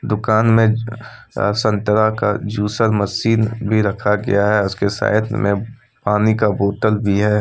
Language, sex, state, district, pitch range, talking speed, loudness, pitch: Hindi, male, Jharkhand, Deoghar, 105-110 Hz, 155 wpm, -17 LUFS, 105 Hz